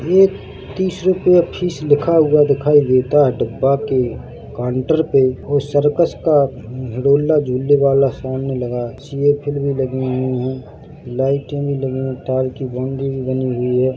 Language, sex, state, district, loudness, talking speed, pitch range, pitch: Hindi, male, Chhattisgarh, Bilaspur, -17 LUFS, 165 wpm, 130-145 Hz, 135 Hz